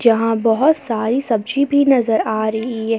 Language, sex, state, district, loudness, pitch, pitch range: Hindi, female, Jharkhand, Palamu, -17 LUFS, 225 Hz, 220-270 Hz